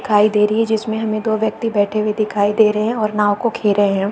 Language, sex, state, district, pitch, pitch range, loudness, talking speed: Hindi, female, Bihar, Saharsa, 215 Hz, 210-220 Hz, -17 LUFS, 275 wpm